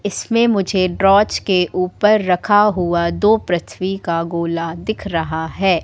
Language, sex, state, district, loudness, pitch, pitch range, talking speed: Hindi, female, Madhya Pradesh, Katni, -17 LUFS, 185 Hz, 170-205 Hz, 145 wpm